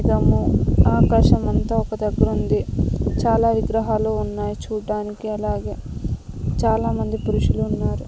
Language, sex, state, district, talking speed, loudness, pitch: Telugu, female, Andhra Pradesh, Sri Satya Sai, 95 wpm, -21 LUFS, 215 Hz